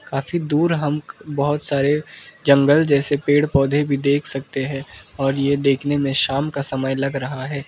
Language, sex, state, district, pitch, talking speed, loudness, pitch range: Hindi, male, Arunachal Pradesh, Lower Dibang Valley, 140 Hz, 180 wpm, -19 LUFS, 135-145 Hz